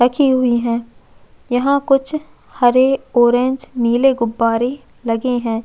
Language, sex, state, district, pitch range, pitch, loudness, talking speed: Hindi, female, Chhattisgarh, Jashpur, 235-270 Hz, 250 Hz, -16 LUFS, 115 wpm